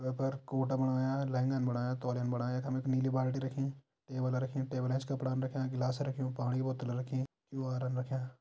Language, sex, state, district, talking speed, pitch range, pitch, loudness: Hindi, male, Uttarakhand, Tehri Garhwal, 180 wpm, 125-135 Hz, 130 Hz, -35 LUFS